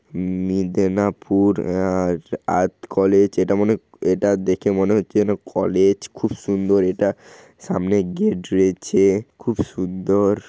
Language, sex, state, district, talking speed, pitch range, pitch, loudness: Bengali, male, West Bengal, Paschim Medinipur, 115 wpm, 95-100 Hz, 100 Hz, -20 LUFS